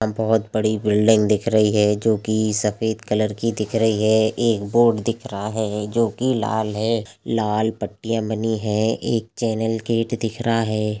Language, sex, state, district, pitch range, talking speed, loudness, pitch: Hindi, male, Bihar, Sitamarhi, 105-115 Hz, 180 wpm, -21 LUFS, 110 Hz